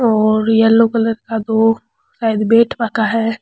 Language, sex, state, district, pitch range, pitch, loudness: Rajasthani, female, Rajasthan, Churu, 220-230 Hz, 225 Hz, -15 LUFS